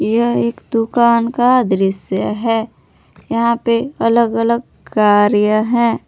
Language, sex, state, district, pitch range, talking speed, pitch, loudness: Hindi, female, Jharkhand, Palamu, 205-235 Hz, 120 wpm, 230 Hz, -15 LUFS